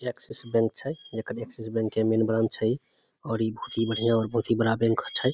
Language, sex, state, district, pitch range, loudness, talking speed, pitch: Maithili, male, Bihar, Samastipur, 110-115 Hz, -27 LUFS, 225 wpm, 115 Hz